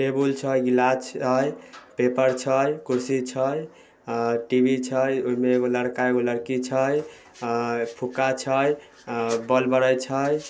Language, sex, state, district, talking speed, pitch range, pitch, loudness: Maithili, male, Bihar, Samastipur, 135 wpm, 125-135 Hz, 130 Hz, -24 LUFS